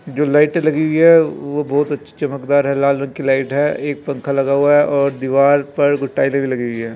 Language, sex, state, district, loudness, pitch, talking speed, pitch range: Hindi, male, Bihar, Begusarai, -16 LUFS, 140 Hz, 240 wpm, 140-145 Hz